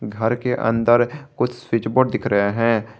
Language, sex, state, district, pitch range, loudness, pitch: Hindi, male, Jharkhand, Garhwa, 110-125 Hz, -20 LUFS, 115 Hz